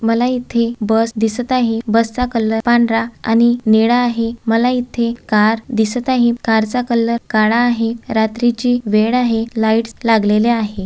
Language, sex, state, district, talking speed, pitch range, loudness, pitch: Marathi, female, Maharashtra, Dhule, 145 wpm, 225-240 Hz, -15 LUFS, 230 Hz